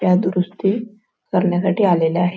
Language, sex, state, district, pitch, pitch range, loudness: Marathi, female, Maharashtra, Nagpur, 185 Hz, 180-195 Hz, -18 LUFS